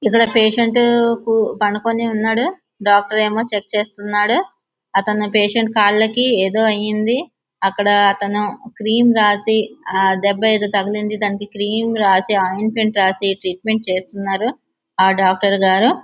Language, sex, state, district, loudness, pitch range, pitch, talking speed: Telugu, male, Andhra Pradesh, Visakhapatnam, -16 LUFS, 200-225 Hz, 210 Hz, 110 wpm